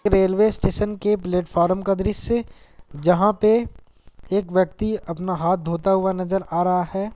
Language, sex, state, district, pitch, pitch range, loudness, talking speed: Hindi, male, Bihar, Gaya, 190 Hz, 180-210 Hz, -21 LUFS, 150 wpm